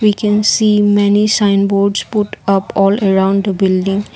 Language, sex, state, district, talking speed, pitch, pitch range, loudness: English, female, Assam, Kamrup Metropolitan, 175 wpm, 200 Hz, 195-210 Hz, -13 LUFS